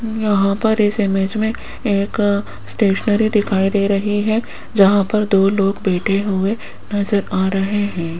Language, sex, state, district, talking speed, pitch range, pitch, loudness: Hindi, female, Rajasthan, Jaipur, 155 wpm, 195-210 Hz, 200 Hz, -17 LUFS